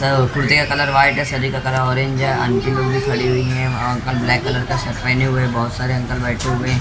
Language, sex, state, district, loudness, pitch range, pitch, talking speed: Hindi, male, Maharashtra, Mumbai Suburban, -18 LUFS, 125-135 Hz, 130 Hz, 245 wpm